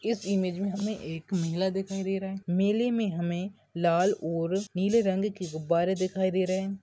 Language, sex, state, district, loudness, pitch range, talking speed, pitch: Hindi, male, Chhattisgarh, Sarguja, -29 LUFS, 175-195 Hz, 200 wpm, 190 Hz